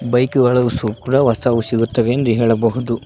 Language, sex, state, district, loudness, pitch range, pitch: Kannada, male, Karnataka, Koppal, -16 LUFS, 115-125 Hz, 120 Hz